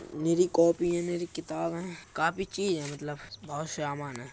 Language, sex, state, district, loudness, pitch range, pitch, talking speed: Bundeli, male, Uttar Pradesh, Budaun, -30 LUFS, 150-175 Hz, 165 Hz, 180 wpm